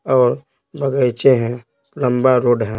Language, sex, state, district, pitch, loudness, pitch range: Hindi, male, Bihar, Patna, 125 Hz, -16 LUFS, 120-135 Hz